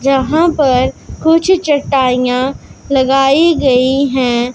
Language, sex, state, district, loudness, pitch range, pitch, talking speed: Hindi, female, Punjab, Pathankot, -12 LUFS, 255-295 Hz, 270 Hz, 90 wpm